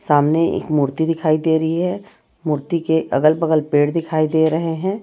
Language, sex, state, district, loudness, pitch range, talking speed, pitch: Hindi, female, Chhattisgarh, Raipur, -18 LUFS, 155-165 Hz, 190 wpm, 160 Hz